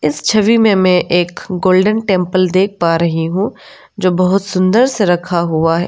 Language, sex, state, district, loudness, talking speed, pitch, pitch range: Hindi, female, Arunachal Pradesh, Lower Dibang Valley, -13 LUFS, 185 wpm, 185 Hz, 170-200 Hz